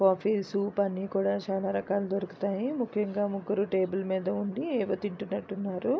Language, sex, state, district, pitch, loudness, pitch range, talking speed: Telugu, female, Andhra Pradesh, Visakhapatnam, 200 Hz, -30 LUFS, 195-205 Hz, 140 wpm